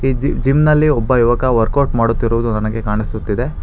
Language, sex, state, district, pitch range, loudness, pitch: Kannada, male, Karnataka, Bangalore, 110-135 Hz, -16 LUFS, 115 Hz